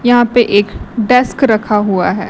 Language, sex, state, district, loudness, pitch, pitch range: Hindi, female, Chhattisgarh, Raipur, -12 LUFS, 230 Hz, 205-245 Hz